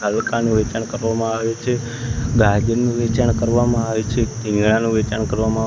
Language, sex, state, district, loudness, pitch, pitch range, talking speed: Gujarati, male, Gujarat, Gandhinagar, -19 LUFS, 115 Hz, 110-120 Hz, 115 wpm